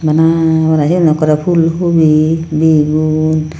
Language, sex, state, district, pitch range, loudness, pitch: Chakma, female, Tripura, Unakoti, 155-165 Hz, -11 LUFS, 160 Hz